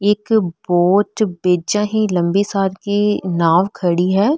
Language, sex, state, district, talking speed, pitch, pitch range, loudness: Marwari, female, Rajasthan, Nagaur, 135 wpm, 195 Hz, 180-210 Hz, -17 LUFS